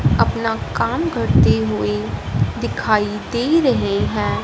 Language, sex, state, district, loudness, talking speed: Hindi, female, Punjab, Fazilka, -19 LUFS, 110 wpm